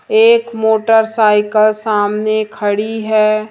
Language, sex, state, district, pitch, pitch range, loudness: Hindi, female, Madhya Pradesh, Umaria, 215 Hz, 215-225 Hz, -13 LUFS